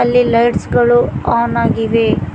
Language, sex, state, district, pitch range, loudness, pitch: Kannada, female, Karnataka, Koppal, 230-240 Hz, -13 LUFS, 235 Hz